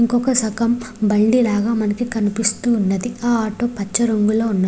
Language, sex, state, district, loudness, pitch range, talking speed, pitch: Telugu, female, Andhra Pradesh, Srikakulam, -18 LUFS, 210-240 Hz, 140 wpm, 225 Hz